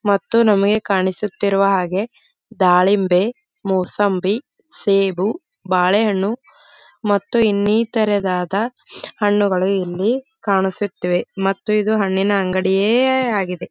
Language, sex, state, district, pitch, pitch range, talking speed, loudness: Kannada, female, Karnataka, Gulbarga, 200 Hz, 190-220 Hz, 75 wpm, -18 LUFS